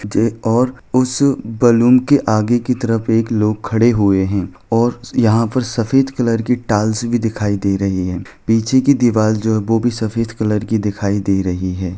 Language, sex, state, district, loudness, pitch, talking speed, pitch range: Hindi, male, Jharkhand, Sahebganj, -16 LUFS, 115 Hz, 195 wpm, 105-120 Hz